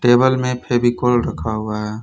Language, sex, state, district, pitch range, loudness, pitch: Hindi, male, Jharkhand, Palamu, 110-125 Hz, -18 LUFS, 120 Hz